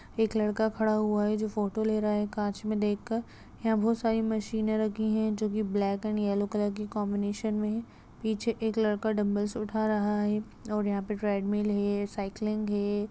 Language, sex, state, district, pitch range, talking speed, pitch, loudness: Hindi, female, Chhattisgarh, Raigarh, 205-220 Hz, 205 wpm, 215 Hz, -30 LUFS